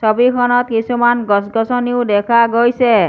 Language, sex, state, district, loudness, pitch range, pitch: Assamese, female, Assam, Kamrup Metropolitan, -14 LUFS, 225-245 Hz, 235 Hz